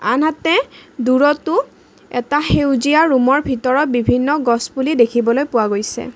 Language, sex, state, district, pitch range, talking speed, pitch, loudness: Assamese, female, Assam, Kamrup Metropolitan, 245-300 Hz, 125 wpm, 270 Hz, -16 LUFS